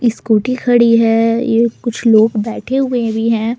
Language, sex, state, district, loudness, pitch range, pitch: Hindi, female, Delhi, New Delhi, -13 LUFS, 225-240 Hz, 230 Hz